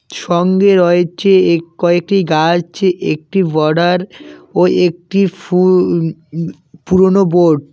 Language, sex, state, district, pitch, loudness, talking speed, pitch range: Bengali, male, West Bengal, Cooch Behar, 175 Hz, -13 LUFS, 110 wpm, 165-185 Hz